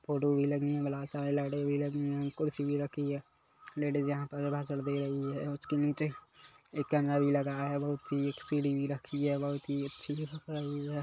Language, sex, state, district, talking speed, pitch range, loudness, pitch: Hindi, male, Chhattisgarh, Kabirdham, 205 wpm, 140-145 Hz, -34 LUFS, 145 Hz